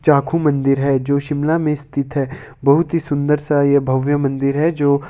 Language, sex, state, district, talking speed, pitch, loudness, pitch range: Hindi, male, Himachal Pradesh, Shimla, 200 wpm, 140 Hz, -17 LUFS, 140-150 Hz